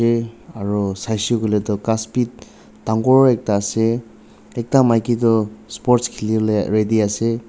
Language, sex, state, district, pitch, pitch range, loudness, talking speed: Nagamese, male, Nagaland, Dimapur, 110 Hz, 110-120 Hz, -18 LUFS, 160 wpm